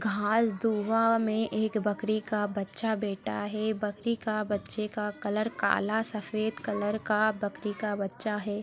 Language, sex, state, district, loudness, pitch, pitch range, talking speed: Hindi, female, Rajasthan, Nagaur, -30 LUFS, 215 Hz, 210-220 Hz, 160 wpm